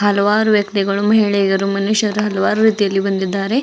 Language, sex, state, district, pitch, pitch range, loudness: Kannada, female, Karnataka, Bidar, 205 Hz, 195-210 Hz, -16 LUFS